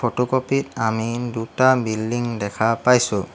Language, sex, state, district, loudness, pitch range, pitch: Assamese, male, Assam, Hailakandi, -20 LUFS, 110-125 Hz, 120 Hz